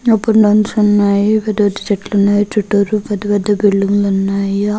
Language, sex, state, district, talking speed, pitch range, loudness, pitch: Telugu, female, Andhra Pradesh, Guntur, 190 wpm, 200-210 Hz, -14 LUFS, 205 Hz